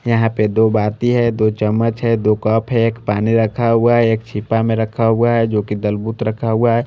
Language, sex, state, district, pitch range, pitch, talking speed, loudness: Hindi, male, Chandigarh, Chandigarh, 110-115 Hz, 115 Hz, 245 wpm, -16 LUFS